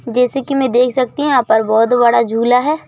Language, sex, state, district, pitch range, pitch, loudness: Hindi, male, Madhya Pradesh, Bhopal, 235-265 Hz, 245 Hz, -14 LUFS